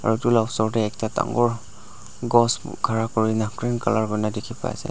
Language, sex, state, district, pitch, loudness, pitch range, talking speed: Nagamese, male, Nagaland, Dimapur, 110 Hz, -23 LUFS, 110-120 Hz, 170 wpm